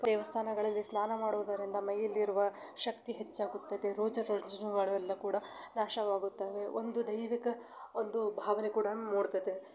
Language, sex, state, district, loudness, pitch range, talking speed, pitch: Kannada, female, Karnataka, Belgaum, -35 LUFS, 200-220 Hz, 110 wpm, 210 Hz